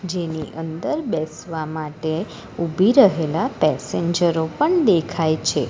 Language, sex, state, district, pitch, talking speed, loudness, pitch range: Gujarati, female, Gujarat, Valsad, 165 Hz, 105 wpm, -20 LUFS, 155-180 Hz